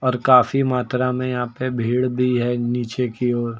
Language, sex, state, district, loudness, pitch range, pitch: Hindi, male, Uttar Pradesh, Lucknow, -20 LUFS, 120-125 Hz, 125 Hz